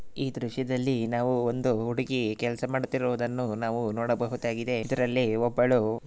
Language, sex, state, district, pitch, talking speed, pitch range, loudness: Kannada, male, Karnataka, Shimoga, 120 Hz, 110 wpm, 115-125 Hz, -28 LUFS